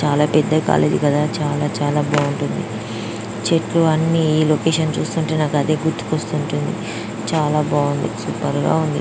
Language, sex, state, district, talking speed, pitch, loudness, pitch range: Telugu, female, Andhra Pradesh, Chittoor, 145 wpm, 150 Hz, -19 LUFS, 140-155 Hz